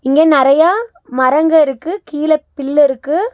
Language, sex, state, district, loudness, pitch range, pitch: Tamil, female, Tamil Nadu, Nilgiris, -13 LUFS, 275-325 Hz, 305 Hz